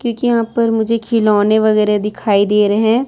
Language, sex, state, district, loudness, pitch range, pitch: Hindi, female, Chhattisgarh, Raipur, -14 LUFS, 210-230 Hz, 220 Hz